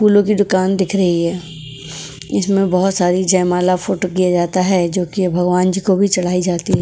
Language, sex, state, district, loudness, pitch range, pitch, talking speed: Hindi, female, Goa, North and South Goa, -16 LUFS, 175-190 Hz, 185 Hz, 200 wpm